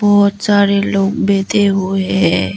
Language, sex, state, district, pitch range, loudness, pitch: Hindi, female, Arunachal Pradesh, Lower Dibang Valley, 190-205 Hz, -14 LUFS, 200 Hz